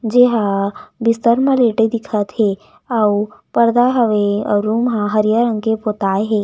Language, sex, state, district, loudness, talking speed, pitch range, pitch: Chhattisgarhi, female, Chhattisgarh, Raigarh, -16 LUFS, 170 wpm, 210-235 Hz, 220 Hz